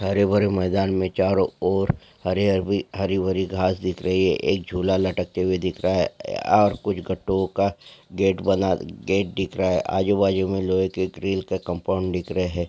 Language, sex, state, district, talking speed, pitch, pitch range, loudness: Hindi, male, Maharashtra, Aurangabad, 200 wpm, 95 Hz, 90-95 Hz, -23 LUFS